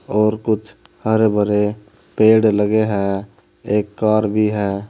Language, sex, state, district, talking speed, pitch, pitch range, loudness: Hindi, male, Uttar Pradesh, Saharanpur, 135 wpm, 105 Hz, 105-110 Hz, -17 LUFS